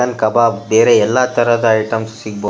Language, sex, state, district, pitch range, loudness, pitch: Kannada, male, Karnataka, Shimoga, 110-120 Hz, -13 LUFS, 115 Hz